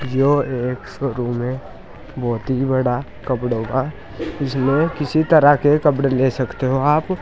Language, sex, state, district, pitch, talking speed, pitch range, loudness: Hindi, male, Uttar Pradesh, Saharanpur, 130 Hz, 150 wpm, 125-145 Hz, -19 LUFS